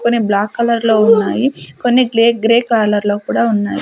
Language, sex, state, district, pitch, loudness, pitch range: Telugu, female, Andhra Pradesh, Sri Satya Sai, 225 Hz, -14 LUFS, 205-235 Hz